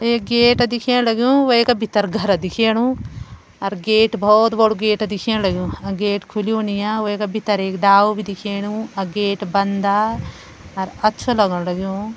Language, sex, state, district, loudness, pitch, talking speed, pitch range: Garhwali, female, Uttarakhand, Uttarkashi, -18 LUFS, 210 Hz, 160 wpm, 200-225 Hz